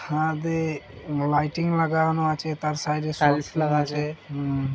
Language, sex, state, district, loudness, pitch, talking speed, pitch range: Bengali, male, West Bengal, Malda, -25 LUFS, 150 Hz, 140 wpm, 150-160 Hz